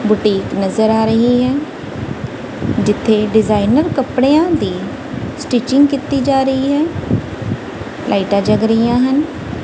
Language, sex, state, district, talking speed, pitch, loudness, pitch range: Punjabi, female, Punjab, Kapurthala, 110 wpm, 245 Hz, -15 LUFS, 220-280 Hz